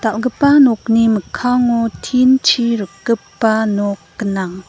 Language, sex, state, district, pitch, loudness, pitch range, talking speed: Garo, female, Meghalaya, West Garo Hills, 225 Hz, -15 LUFS, 205-245 Hz, 75 wpm